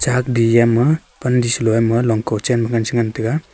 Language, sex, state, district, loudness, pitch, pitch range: Wancho, male, Arunachal Pradesh, Longding, -17 LUFS, 120 Hz, 115-125 Hz